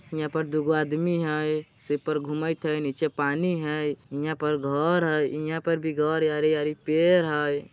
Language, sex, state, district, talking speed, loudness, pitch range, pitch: Bajjika, male, Bihar, Vaishali, 185 wpm, -26 LUFS, 150-160 Hz, 155 Hz